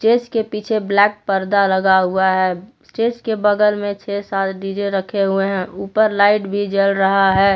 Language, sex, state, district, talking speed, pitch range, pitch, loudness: Hindi, female, Jharkhand, Palamu, 180 wpm, 195-210 Hz, 200 Hz, -17 LUFS